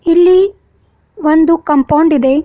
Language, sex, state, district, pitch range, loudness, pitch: Kannada, female, Karnataka, Bidar, 300-345 Hz, -11 LUFS, 320 Hz